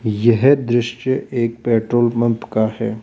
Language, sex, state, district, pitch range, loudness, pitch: Hindi, male, Rajasthan, Jaipur, 115-120 Hz, -17 LUFS, 120 Hz